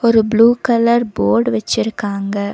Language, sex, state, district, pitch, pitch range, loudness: Tamil, female, Tamil Nadu, Nilgiris, 225 Hz, 205-235 Hz, -15 LUFS